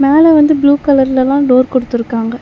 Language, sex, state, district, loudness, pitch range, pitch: Tamil, female, Tamil Nadu, Chennai, -11 LUFS, 250-285 Hz, 270 Hz